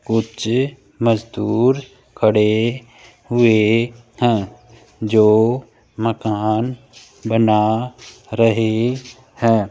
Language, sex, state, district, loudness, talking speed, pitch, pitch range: Hindi, male, Rajasthan, Jaipur, -18 LUFS, 60 wpm, 115 Hz, 110-120 Hz